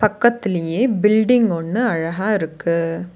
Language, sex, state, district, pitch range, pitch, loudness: Tamil, female, Tamil Nadu, Nilgiris, 170-230 Hz, 205 Hz, -18 LUFS